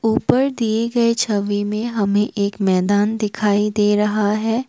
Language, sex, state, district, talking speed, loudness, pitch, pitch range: Hindi, female, Assam, Kamrup Metropolitan, 155 wpm, -18 LUFS, 210 Hz, 205-225 Hz